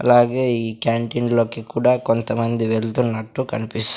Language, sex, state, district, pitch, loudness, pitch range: Telugu, male, Andhra Pradesh, Sri Satya Sai, 115 Hz, -20 LUFS, 110-120 Hz